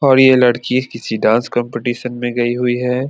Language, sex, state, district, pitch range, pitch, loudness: Hindi, male, Bihar, Saran, 120-125 Hz, 120 Hz, -16 LUFS